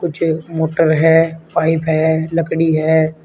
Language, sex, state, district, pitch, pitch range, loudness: Hindi, male, Uttar Pradesh, Shamli, 160 Hz, 160-165 Hz, -15 LUFS